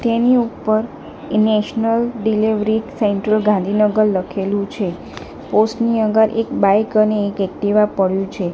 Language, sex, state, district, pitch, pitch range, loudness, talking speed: Gujarati, female, Gujarat, Gandhinagar, 215 Hz, 205-220 Hz, -17 LUFS, 125 wpm